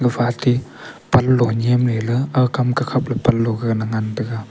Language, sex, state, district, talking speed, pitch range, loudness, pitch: Wancho, male, Arunachal Pradesh, Longding, 175 wpm, 115-125 Hz, -19 LUFS, 120 Hz